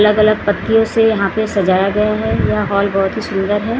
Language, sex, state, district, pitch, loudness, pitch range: Hindi, female, Maharashtra, Gondia, 210 Hz, -15 LUFS, 200-220 Hz